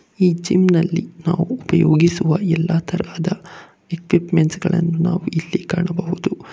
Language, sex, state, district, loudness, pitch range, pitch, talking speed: Kannada, male, Karnataka, Bangalore, -18 LUFS, 165-180 Hz, 175 Hz, 110 wpm